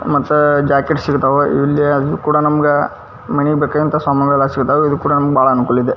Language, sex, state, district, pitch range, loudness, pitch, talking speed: Kannada, male, Karnataka, Dharwad, 140-150 Hz, -14 LUFS, 145 Hz, 180 wpm